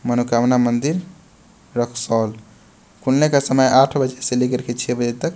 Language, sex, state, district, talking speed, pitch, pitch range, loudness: Hindi, male, Bihar, West Champaran, 155 wpm, 125 Hz, 120-135 Hz, -19 LUFS